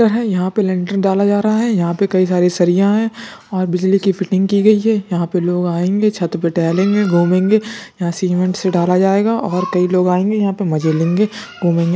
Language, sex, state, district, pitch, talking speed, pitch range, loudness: Hindi, male, Uttar Pradesh, Budaun, 185 Hz, 210 wpm, 180-205 Hz, -15 LUFS